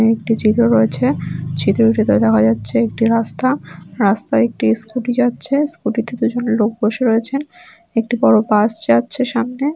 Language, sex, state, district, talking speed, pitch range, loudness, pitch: Bengali, female, West Bengal, Dakshin Dinajpur, 165 wpm, 155-240 Hz, -16 LUFS, 225 Hz